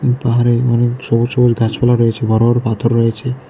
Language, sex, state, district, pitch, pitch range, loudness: Bengali, male, Tripura, West Tripura, 120 Hz, 115-125 Hz, -14 LUFS